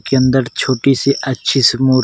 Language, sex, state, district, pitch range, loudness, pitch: Hindi, male, Uttar Pradesh, Varanasi, 130-135 Hz, -14 LUFS, 130 Hz